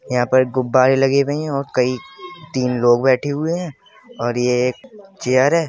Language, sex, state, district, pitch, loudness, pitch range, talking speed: Hindi, male, Uttar Pradesh, Budaun, 130 Hz, -18 LUFS, 125-150 Hz, 190 wpm